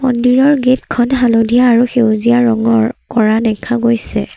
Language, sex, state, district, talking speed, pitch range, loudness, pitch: Assamese, female, Assam, Sonitpur, 135 wpm, 225-250 Hz, -12 LUFS, 235 Hz